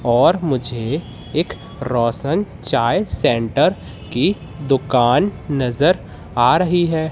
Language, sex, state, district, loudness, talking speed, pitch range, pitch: Hindi, male, Madhya Pradesh, Katni, -18 LUFS, 100 wpm, 120-160 Hz, 135 Hz